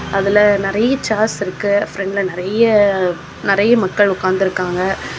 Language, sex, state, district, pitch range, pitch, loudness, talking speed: Tamil, female, Tamil Nadu, Kanyakumari, 190-210 Hz, 200 Hz, -16 LUFS, 105 wpm